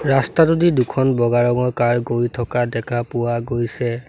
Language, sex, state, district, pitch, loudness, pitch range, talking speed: Assamese, male, Assam, Sonitpur, 120 Hz, -18 LUFS, 120-130 Hz, 145 wpm